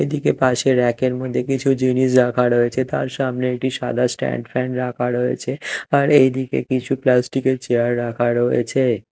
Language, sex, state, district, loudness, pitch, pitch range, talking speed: Bengali, male, Odisha, Malkangiri, -19 LUFS, 125 Hz, 120-130 Hz, 165 wpm